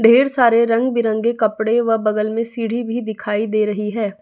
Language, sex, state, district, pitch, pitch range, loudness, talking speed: Hindi, female, Bihar, West Champaran, 225 Hz, 215-235 Hz, -18 LUFS, 185 wpm